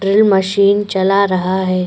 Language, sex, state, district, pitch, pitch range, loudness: Hindi, female, Goa, North and South Goa, 195 Hz, 190-200 Hz, -14 LUFS